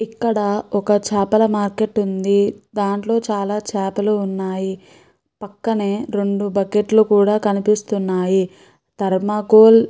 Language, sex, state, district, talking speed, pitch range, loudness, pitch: Telugu, female, Andhra Pradesh, Chittoor, 105 wpm, 200-215 Hz, -18 LUFS, 205 Hz